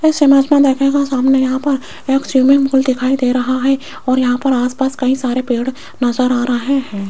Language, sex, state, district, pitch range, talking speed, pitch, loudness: Hindi, female, Rajasthan, Jaipur, 255-275 Hz, 210 wpm, 265 Hz, -14 LUFS